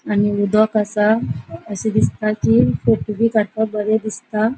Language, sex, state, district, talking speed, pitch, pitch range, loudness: Konkani, female, Goa, North and South Goa, 145 wpm, 210 Hz, 200-215 Hz, -18 LUFS